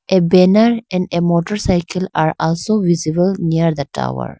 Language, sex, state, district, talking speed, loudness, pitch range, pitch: English, female, Arunachal Pradesh, Lower Dibang Valley, 165 wpm, -16 LUFS, 160-185 Hz, 175 Hz